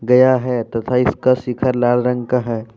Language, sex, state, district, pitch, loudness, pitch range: Hindi, male, Jharkhand, Deoghar, 125 Hz, -17 LUFS, 120-125 Hz